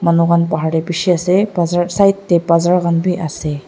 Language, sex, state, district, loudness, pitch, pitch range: Nagamese, female, Nagaland, Dimapur, -15 LUFS, 170 Hz, 165-180 Hz